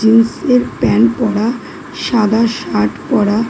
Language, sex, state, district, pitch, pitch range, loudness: Bengali, female, West Bengal, Dakshin Dinajpur, 230 Hz, 215-245 Hz, -14 LUFS